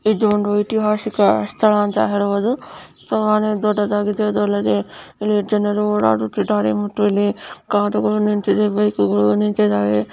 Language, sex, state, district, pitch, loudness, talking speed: Kannada, female, Karnataka, Bijapur, 205 Hz, -18 LUFS, 95 wpm